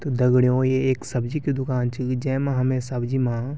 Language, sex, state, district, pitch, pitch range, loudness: Garhwali, male, Uttarakhand, Tehri Garhwal, 130 Hz, 125-130 Hz, -23 LUFS